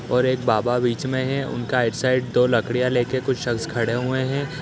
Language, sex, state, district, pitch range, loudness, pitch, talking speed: Hindi, male, Bihar, East Champaran, 120-130 Hz, -22 LUFS, 125 Hz, 210 wpm